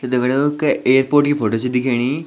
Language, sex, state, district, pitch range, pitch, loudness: Garhwali, male, Uttarakhand, Tehri Garhwal, 125-145 Hz, 130 Hz, -17 LUFS